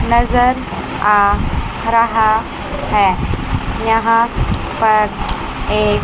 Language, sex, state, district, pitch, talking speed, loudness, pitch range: Hindi, female, Chandigarh, Chandigarh, 225 Hz, 70 wpm, -15 LUFS, 210-230 Hz